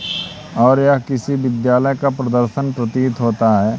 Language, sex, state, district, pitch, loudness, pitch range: Hindi, male, Madhya Pradesh, Katni, 125 Hz, -16 LUFS, 120-135 Hz